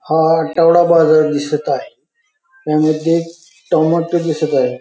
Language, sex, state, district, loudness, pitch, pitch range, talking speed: Marathi, male, Maharashtra, Pune, -14 LUFS, 160 Hz, 155-170 Hz, 125 wpm